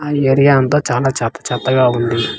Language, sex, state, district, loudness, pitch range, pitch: Telugu, male, Andhra Pradesh, Manyam, -14 LUFS, 120-140 Hz, 130 Hz